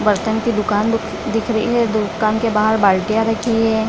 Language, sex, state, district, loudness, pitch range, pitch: Hindi, female, Bihar, Lakhisarai, -17 LUFS, 215-225 Hz, 220 Hz